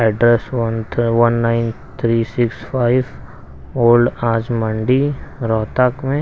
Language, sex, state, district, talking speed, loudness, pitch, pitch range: Hindi, male, Haryana, Rohtak, 125 wpm, -17 LUFS, 120 Hz, 115-125 Hz